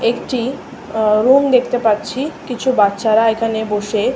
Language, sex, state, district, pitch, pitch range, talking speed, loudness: Bengali, female, West Bengal, Malda, 230 Hz, 215-255 Hz, 130 wpm, -16 LUFS